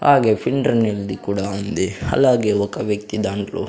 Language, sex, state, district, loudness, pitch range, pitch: Telugu, male, Andhra Pradesh, Sri Satya Sai, -19 LUFS, 100-115 Hz, 105 Hz